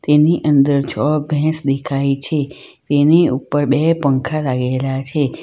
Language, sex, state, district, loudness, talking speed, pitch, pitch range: Gujarati, female, Gujarat, Valsad, -16 LUFS, 135 wpm, 145 Hz, 135-150 Hz